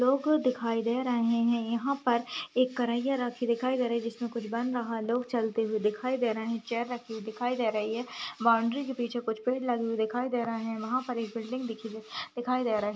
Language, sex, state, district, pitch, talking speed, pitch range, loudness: Hindi, female, Uttarakhand, Tehri Garhwal, 235 Hz, 245 wpm, 225-250 Hz, -30 LUFS